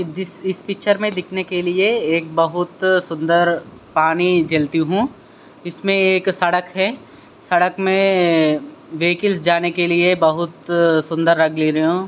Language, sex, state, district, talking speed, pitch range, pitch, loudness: Hindi, male, Maharashtra, Sindhudurg, 130 wpm, 165-190 Hz, 175 Hz, -17 LUFS